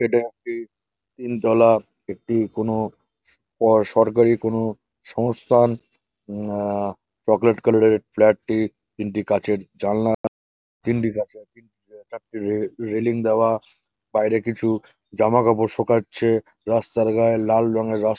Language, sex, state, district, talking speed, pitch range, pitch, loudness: Bengali, male, West Bengal, North 24 Parganas, 120 wpm, 105-115 Hz, 110 Hz, -21 LUFS